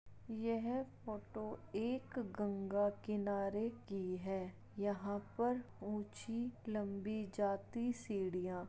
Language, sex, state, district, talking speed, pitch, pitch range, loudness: Hindi, female, Bihar, Jahanabad, 90 wpm, 210 Hz, 200-230 Hz, -42 LUFS